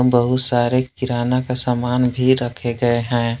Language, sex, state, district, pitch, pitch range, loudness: Hindi, male, Jharkhand, Palamu, 125 Hz, 120-125 Hz, -19 LUFS